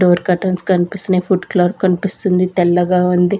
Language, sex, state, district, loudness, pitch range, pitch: Telugu, female, Andhra Pradesh, Sri Satya Sai, -15 LUFS, 180-185 Hz, 180 Hz